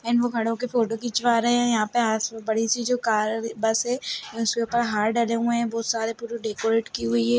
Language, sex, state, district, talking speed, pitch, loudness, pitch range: Hindi, female, Chhattisgarh, Balrampur, 260 wpm, 230 Hz, -24 LUFS, 225-235 Hz